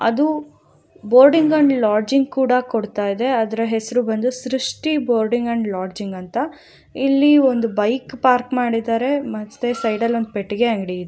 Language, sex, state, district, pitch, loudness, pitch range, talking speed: Kannada, female, Karnataka, Raichur, 240 Hz, -18 LUFS, 220-265 Hz, 145 wpm